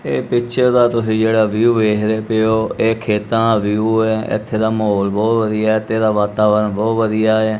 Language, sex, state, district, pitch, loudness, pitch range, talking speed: Punjabi, male, Punjab, Kapurthala, 110 Hz, -16 LUFS, 105-115 Hz, 195 wpm